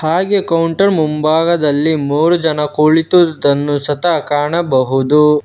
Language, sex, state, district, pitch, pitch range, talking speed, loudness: Kannada, male, Karnataka, Bangalore, 155 Hz, 145-170 Hz, 90 wpm, -13 LUFS